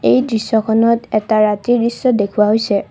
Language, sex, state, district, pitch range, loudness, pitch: Assamese, female, Assam, Kamrup Metropolitan, 210-235 Hz, -15 LUFS, 220 Hz